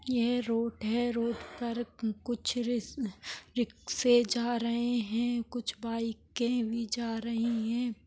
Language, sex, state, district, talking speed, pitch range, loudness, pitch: Hindi, female, Maharashtra, Nagpur, 125 wpm, 230-240 Hz, -32 LUFS, 235 Hz